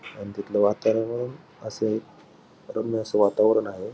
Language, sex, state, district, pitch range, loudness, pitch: Marathi, male, Maharashtra, Pune, 105-110 Hz, -25 LUFS, 110 Hz